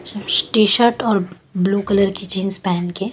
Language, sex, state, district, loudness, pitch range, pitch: Hindi, female, Chandigarh, Chandigarh, -18 LUFS, 185-205 Hz, 195 Hz